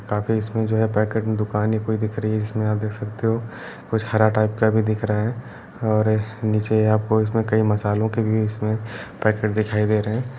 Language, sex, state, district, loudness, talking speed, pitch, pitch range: Hindi, male, Uttar Pradesh, Jalaun, -22 LUFS, 220 wpm, 110 Hz, 105-110 Hz